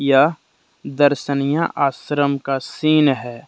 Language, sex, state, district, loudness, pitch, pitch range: Hindi, male, Jharkhand, Deoghar, -18 LUFS, 140 Hz, 135-145 Hz